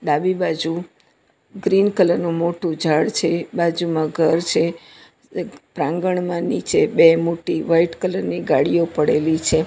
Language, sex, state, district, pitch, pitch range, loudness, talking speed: Gujarati, female, Gujarat, Valsad, 170 Hz, 160-175 Hz, -19 LUFS, 130 wpm